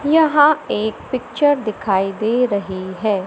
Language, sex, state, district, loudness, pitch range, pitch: Hindi, male, Madhya Pradesh, Katni, -18 LUFS, 195-290 Hz, 220 Hz